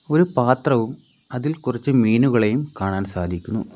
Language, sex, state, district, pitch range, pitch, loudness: Malayalam, male, Kerala, Kollam, 110-140 Hz, 125 Hz, -20 LUFS